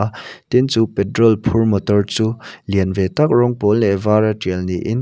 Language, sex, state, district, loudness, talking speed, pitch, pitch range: Mizo, male, Mizoram, Aizawl, -17 LUFS, 205 wpm, 105 Hz, 100-115 Hz